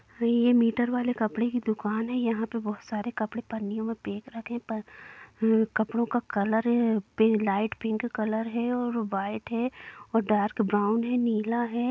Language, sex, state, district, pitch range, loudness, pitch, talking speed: Hindi, female, Bihar, Gopalganj, 215-235 Hz, -28 LUFS, 225 Hz, 175 wpm